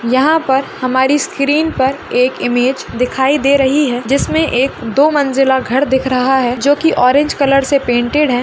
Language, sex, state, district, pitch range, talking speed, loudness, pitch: Hindi, female, Rajasthan, Churu, 255-285 Hz, 185 wpm, -13 LUFS, 265 Hz